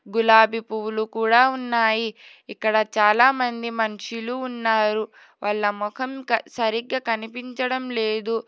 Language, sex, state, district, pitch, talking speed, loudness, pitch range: Telugu, female, Telangana, Hyderabad, 225 Hz, 90 wpm, -22 LUFS, 220-245 Hz